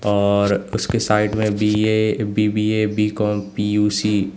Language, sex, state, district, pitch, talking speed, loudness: Hindi, male, Uttar Pradesh, Lalitpur, 105 Hz, 125 wpm, -19 LUFS